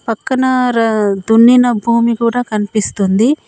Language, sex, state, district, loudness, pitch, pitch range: Telugu, female, Telangana, Komaram Bheem, -13 LUFS, 235 Hz, 215-245 Hz